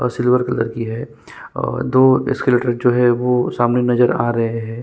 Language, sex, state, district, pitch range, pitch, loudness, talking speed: Hindi, male, Chhattisgarh, Sukma, 115-125 Hz, 120 Hz, -17 LUFS, 200 wpm